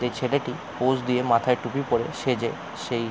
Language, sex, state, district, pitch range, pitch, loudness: Bengali, male, West Bengal, Jalpaiguri, 120-130 Hz, 125 Hz, -25 LUFS